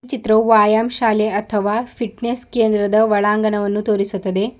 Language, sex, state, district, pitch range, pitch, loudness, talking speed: Kannada, female, Karnataka, Bidar, 205-230 Hz, 215 Hz, -17 LUFS, 115 wpm